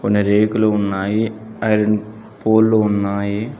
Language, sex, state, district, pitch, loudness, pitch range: Telugu, male, Telangana, Mahabubabad, 105 Hz, -17 LUFS, 105-110 Hz